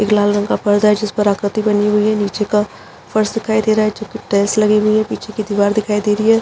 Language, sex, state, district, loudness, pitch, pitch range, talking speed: Hindi, female, Chhattisgarh, Rajnandgaon, -16 LUFS, 210 Hz, 205-215 Hz, 300 wpm